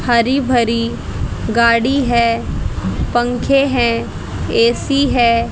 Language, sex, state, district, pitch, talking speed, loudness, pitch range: Hindi, female, Haryana, Jhajjar, 240 Hz, 85 wpm, -16 LUFS, 235-260 Hz